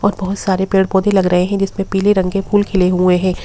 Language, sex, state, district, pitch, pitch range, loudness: Hindi, female, Bihar, Gopalganj, 190 Hz, 185-195 Hz, -15 LUFS